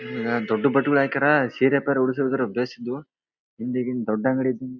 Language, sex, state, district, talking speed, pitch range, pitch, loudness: Kannada, male, Karnataka, Bellary, 100 wpm, 120-140 Hz, 130 Hz, -23 LUFS